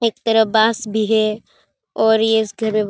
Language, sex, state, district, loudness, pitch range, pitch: Hindi, female, Bihar, Kishanganj, -17 LUFS, 215-225 Hz, 220 Hz